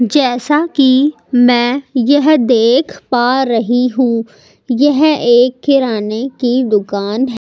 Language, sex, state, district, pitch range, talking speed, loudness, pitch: Hindi, female, Delhi, New Delhi, 240-275 Hz, 105 wpm, -13 LUFS, 250 Hz